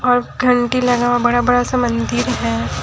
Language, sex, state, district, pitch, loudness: Hindi, female, Haryana, Charkhi Dadri, 245 Hz, -16 LUFS